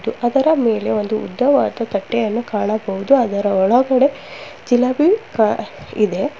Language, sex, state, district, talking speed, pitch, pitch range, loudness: Kannada, female, Karnataka, Bangalore, 105 wpm, 230 Hz, 210-270 Hz, -17 LUFS